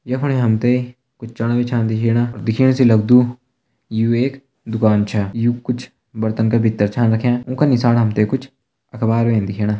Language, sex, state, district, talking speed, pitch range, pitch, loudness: Hindi, male, Uttarakhand, Tehri Garhwal, 200 wpm, 110-125 Hz, 120 Hz, -17 LUFS